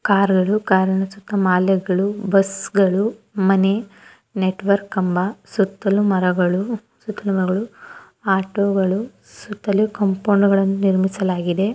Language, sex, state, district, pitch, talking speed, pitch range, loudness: Kannada, female, Karnataka, Dharwad, 195 Hz, 75 wpm, 190-205 Hz, -19 LUFS